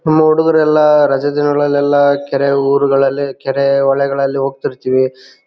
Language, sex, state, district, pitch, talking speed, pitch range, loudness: Kannada, male, Karnataka, Bellary, 140 Hz, 120 wpm, 135-145 Hz, -13 LUFS